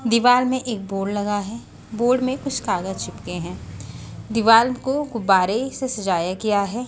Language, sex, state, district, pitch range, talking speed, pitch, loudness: Hindi, female, Bihar, West Champaran, 205-255 Hz, 165 wpm, 230 Hz, -21 LUFS